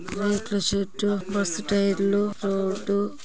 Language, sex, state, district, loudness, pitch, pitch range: Telugu, male, Andhra Pradesh, Guntur, -25 LUFS, 200 Hz, 200-205 Hz